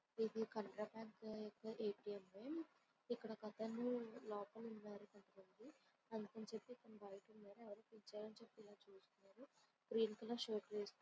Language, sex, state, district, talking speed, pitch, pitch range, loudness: Telugu, female, Andhra Pradesh, Visakhapatnam, 75 wpm, 220 Hz, 205-225 Hz, -50 LUFS